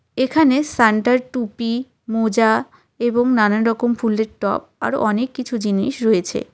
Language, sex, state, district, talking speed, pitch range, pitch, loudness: Bengali, female, West Bengal, Cooch Behar, 130 wpm, 220-255 Hz, 235 Hz, -18 LUFS